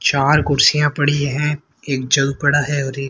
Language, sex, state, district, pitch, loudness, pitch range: Hindi, male, Haryana, Rohtak, 145 Hz, -16 LUFS, 135-145 Hz